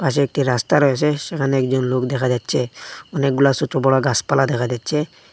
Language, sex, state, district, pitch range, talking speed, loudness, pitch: Bengali, male, Assam, Hailakandi, 130-145 Hz, 170 wpm, -19 LUFS, 135 Hz